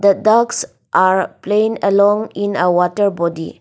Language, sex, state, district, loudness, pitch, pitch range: English, female, Nagaland, Dimapur, -15 LUFS, 200 Hz, 185-210 Hz